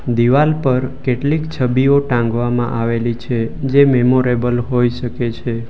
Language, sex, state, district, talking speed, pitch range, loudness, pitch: Gujarati, male, Gujarat, Valsad, 125 wpm, 120-135 Hz, -16 LUFS, 125 Hz